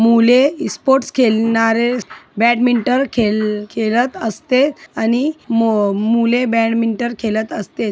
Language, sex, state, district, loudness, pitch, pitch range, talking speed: Marathi, female, Maharashtra, Chandrapur, -16 LUFS, 230 Hz, 225-250 Hz, 100 wpm